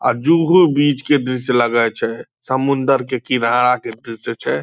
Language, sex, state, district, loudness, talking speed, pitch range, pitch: Angika, male, Bihar, Purnia, -16 LUFS, 170 wpm, 120-140 Hz, 130 Hz